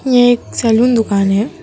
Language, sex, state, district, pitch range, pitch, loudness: Hindi, female, West Bengal, Alipurduar, 215-245 Hz, 235 Hz, -13 LUFS